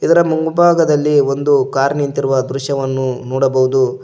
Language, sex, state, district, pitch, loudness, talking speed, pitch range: Kannada, male, Karnataka, Koppal, 140 Hz, -15 LUFS, 105 wpm, 130-150 Hz